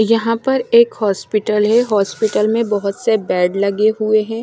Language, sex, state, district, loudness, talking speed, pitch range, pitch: Hindi, male, Punjab, Fazilka, -16 LUFS, 175 wpm, 205-230 Hz, 215 Hz